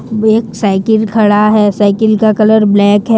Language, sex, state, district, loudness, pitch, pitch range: Hindi, female, Jharkhand, Deoghar, -10 LUFS, 215 Hz, 205-220 Hz